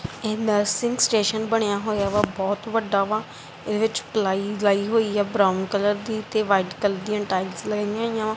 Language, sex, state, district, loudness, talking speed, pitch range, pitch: Punjabi, female, Punjab, Kapurthala, -23 LUFS, 170 wpm, 200-220 Hz, 210 Hz